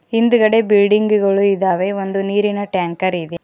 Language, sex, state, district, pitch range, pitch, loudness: Kannada, female, Karnataka, Koppal, 185-210 Hz, 200 Hz, -16 LUFS